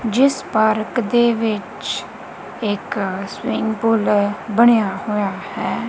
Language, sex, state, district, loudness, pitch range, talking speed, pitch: Punjabi, female, Punjab, Kapurthala, -19 LUFS, 205-235 Hz, 100 wpm, 220 Hz